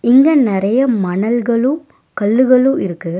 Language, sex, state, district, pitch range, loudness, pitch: Tamil, female, Tamil Nadu, Nilgiris, 200-260 Hz, -14 LUFS, 240 Hz